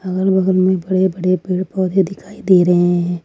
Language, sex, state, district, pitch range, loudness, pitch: Hindi, female, Jharkhand, Ranchi, 180-190 Hz, -16 LUFS, 185 Hz